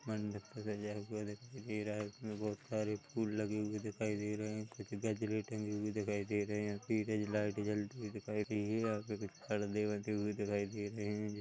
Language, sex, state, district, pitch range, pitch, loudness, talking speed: Hindi, male, Chhattisgarh, Korba, 105-110 Hz, 105 Hz, -40 LUFS, 195 wpm